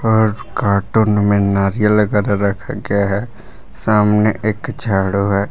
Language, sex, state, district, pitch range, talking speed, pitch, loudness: Hindi, male, Jharkhand, Palamu, 100-110 Hz, 130 wpm, 105 Hz, -16 LUFS